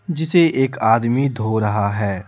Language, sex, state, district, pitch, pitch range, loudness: Hindi, male, Bihar, Patna, 115 Hz, 105-140 Hz, -18 LUFS